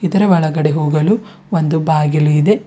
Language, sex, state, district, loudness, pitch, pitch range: Kannada, female, Karnataka, Bidar, -14 LUFS, 160 Hz, 155-200 Hz